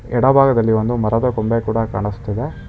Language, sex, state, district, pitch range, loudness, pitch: Kannada, male, Karnataka, Bangalore, 110-120 Hz, -17 LUFS, 115 Hz